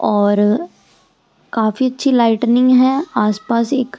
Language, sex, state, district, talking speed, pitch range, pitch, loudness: Hindi, female, Delhi, New Delhi, 120 wpm, 215-260 Hz, 235 Hz, -15 LUFS